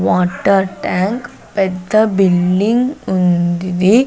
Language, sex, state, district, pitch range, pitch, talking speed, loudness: Telugu, female, Andhra Pradesh, Sri Satya Sai, 180-215 Hz, 190 Hz, 90 wpm, -15 LUFS